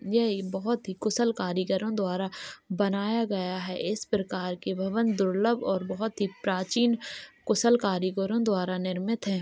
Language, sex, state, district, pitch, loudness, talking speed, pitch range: Hindi, male, Uttar Pradesh, Jalaun, 200 Hz, -28 LUFS, 155 wpm, 190-225 Hz